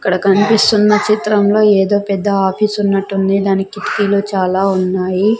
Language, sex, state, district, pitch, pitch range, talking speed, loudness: Telugu, female, Andhra Pradesh, Sri Satya Sai, 200 Hz, 195-210 Hz, 110 wpm, -13 LUFS